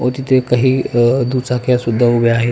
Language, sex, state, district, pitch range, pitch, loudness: Marathi, male, Maharashtra, Pune, 120-130 Hz, 125 Hz, -14 LUFS